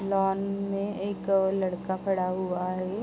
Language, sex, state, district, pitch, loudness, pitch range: Hindi, female, Uttar Pradesh, Jalaun, 195 Hz, -29 LUFS, 185-195 Hz